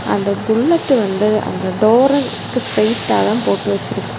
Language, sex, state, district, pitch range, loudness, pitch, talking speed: Tamil, female, Tamil Nadu, Kanyakumari, 205-260 Hz, -15 LUFS, 220 Hz, 115 wpm